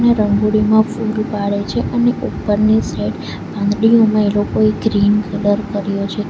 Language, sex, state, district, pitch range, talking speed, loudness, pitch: Gujarati, female, Gujarat, Valsad, 205-220 Hz, 145 wpm, -16 LUFS, 210 Hz